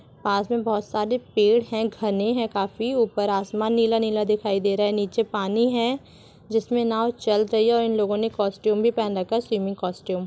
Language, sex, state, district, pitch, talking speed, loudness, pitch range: Hindi, female, Jharkhand, Sahebganj, 215 Hz, 210 wpm, -23 LUFS, 205-230 Hz